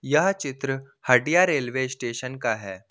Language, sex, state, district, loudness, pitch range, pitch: Hindi, male, Jharkhand, Ranchi, -24 LUFS, 125-140 Hz, 130 Hz